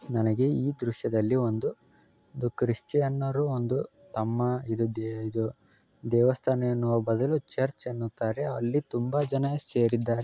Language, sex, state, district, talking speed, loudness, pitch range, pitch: Kannada, male, Karnataka, Belgaum, 105 wpm, -29 LUFS, 115-135 Hz, 120 Hz